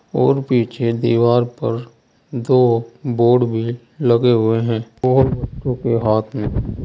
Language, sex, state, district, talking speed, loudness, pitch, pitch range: Hindi, male, Uttar Pradesh, Saharanpur, 130 wpm, -17 LUFS, 120 Hz, 115-125 Hz